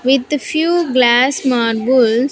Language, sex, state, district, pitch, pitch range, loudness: English, female, Andhra Pradesh, Sri Satya Sai, 255 Hz, 240-285 Hz, -14 LUFS